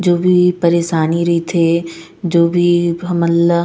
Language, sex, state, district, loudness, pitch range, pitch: Chhattisgarhi, female, Chhattisgarh, Raigarh, -14 LUFS, 170-175 Hz, 170 Hz